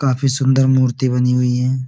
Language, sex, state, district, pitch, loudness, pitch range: Hindi, male, Uttar Pradesh, Budaun, 130 Hz, -16 LUFS, 125-130 Hz